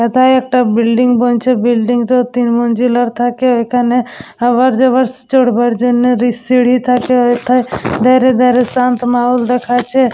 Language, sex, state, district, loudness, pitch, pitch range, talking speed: Bengali, female, West Bengal, Dakshin Dinajpur, -12 LUFS, 245 Hz, 240-250 Hz, 150 wpm